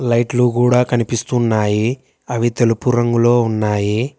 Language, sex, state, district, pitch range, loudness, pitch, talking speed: Telugu, male, Telangana, Hyderabad, 115-125 Hz, -16 LUFS, 120 Hz, 100 wpm